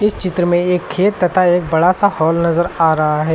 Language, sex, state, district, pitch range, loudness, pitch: Hindi, male, Uttar Pradesh, Lucknow, 165-185 Hz, -15 LUFS, 175 Hz